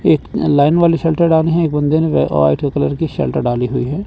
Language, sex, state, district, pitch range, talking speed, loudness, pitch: Hindi, male, Chandigarh, Chandigarh, 125-165 Hz, 250 wpm, -15 LUFS, 155 Hz